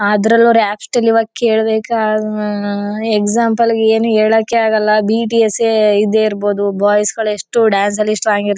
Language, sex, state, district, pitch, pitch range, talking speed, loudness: Kannada, female, Karnataka, Chamarajanagar, 215 Hz, 210-225 Hz, 135 wpm, -13 LUFS